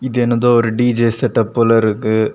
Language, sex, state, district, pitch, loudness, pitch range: Tamil, male, Tamil Nadu, Kanyakumari, 115 Hz, -15 LUFS, 110-120 Hz